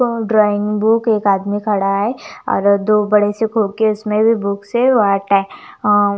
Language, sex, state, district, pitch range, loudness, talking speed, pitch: Hindi, female, Chandigarh, Chandigarh, 200-225 Hz, -15 LUFS, 145 wpm, 210 Hz